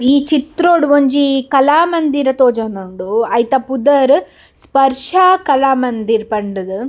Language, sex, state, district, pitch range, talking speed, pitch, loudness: Tulu, female, Karnataka, Dakshina Kannada, 235-285 Hz, 85 wpm, 270 Hz, -13 LUFS